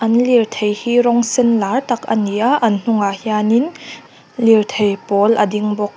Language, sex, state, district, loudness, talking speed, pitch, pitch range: Mizo, female, Mizoram, Aizawl, -15 LUFS, 180 wpm, 225 Hz, 210-240 Hz